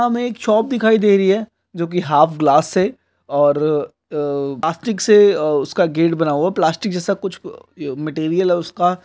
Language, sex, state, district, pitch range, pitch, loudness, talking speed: Hindi, male, Chhattisgarh, Korba, 155-210 Hz, 180 Hz, -17 LUFS, 180 wpm